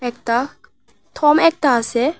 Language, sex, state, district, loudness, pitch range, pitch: Bengali, female, Tripura, West Tripura, -17 LUFS, 240-300 Hz, 260 Hz